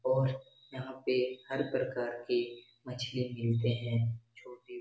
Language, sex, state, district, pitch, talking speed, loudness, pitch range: Hindi, male, Bihar, Jahanabad, 125 Hz, 135 wpm, -34 LUFS, 120-130 Hz